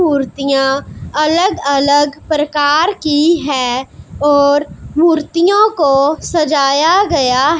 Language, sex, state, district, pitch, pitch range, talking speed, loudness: Hindi, female, Punjab, Pathankot, 295 Hz, 280-330 Hz, 80 wpm, -13 LUFS